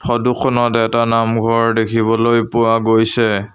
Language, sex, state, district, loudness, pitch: Assamese, male, Assam, Sonitpur, -15 LUFS, 115 Hz